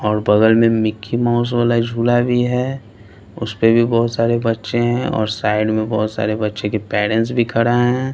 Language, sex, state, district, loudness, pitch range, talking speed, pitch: Hindi, male, Bihar, Patna, -17 LUFS, 110-120 Hz, 200 wpm, 115 Hz